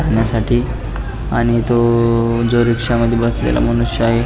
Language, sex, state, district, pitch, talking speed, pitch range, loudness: Marathi, male, Maharashtra, Pune, 115 Hz, 115 wpm, 115-120 Hz, -16 LUFS